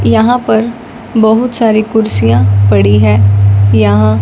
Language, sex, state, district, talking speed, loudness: Hindi, male, Punjab, Fazilka, 115 wpm, -9 LUFS